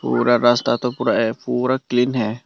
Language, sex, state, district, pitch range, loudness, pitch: Hindi, male, Tripura, Dhalai, 120-125 Hz, -19 LUFS, 125 Hz